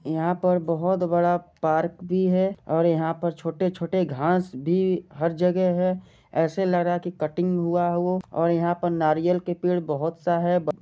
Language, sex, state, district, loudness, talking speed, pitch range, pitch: Hindi, male, Jharkhand, Jamtara, -24 LUFS, 185 wpm, 165-180 Hz, 175 Hz